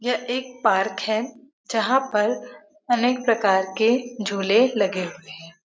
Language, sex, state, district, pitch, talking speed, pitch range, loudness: Hindi, female, Uttar Pradesh, Varanasi, 220 Hz, 150 wpm, 190-245 Hz, -22 LUFS